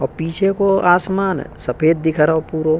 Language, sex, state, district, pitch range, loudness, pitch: Hindi, male, Uttar Pradesh, Hamirpur, 155-190 Hz, -17 LUFS, 160 Hz